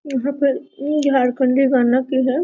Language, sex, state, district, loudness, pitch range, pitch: Hindi, female, Jharkhand, Sahebganj, -18 LUFS, 260-280 Hz, 270 Hz